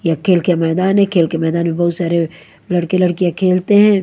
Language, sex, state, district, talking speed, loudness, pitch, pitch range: Hindi, female, Haryana, Charkhi Dadri, 225 wpm, -15 LUFS, 175 Hz, 165-185 Hz